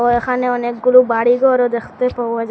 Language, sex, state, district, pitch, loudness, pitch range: Bengali, female, Assam, Hailakandi, 245 Hz, -15 LUFS, 235-250 Hz